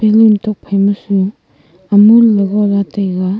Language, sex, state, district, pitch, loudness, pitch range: Wancho, female, Arunachal Pradesh, Longding, 200 Hz, -12 LUFS, 195-215 Hz